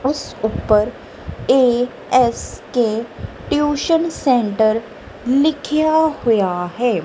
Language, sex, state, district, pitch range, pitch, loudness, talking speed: Punjabi, female, Punjab, Kapurthala, 220-290 Hz, 245 Hz, -17 LUFS, 70 wpm